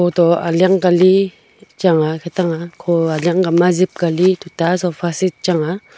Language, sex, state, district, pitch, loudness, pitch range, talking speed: Wancho, female, Arunachal Pradesh, Longding, 175 Hz, -16 LUFS, 170-185 Hz, 210 wpm